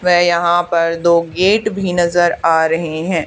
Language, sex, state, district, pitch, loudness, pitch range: Hindi, female, Haryana, Charkhi Dadri, 170 Hz, -14 LUFS, 165-175 Hz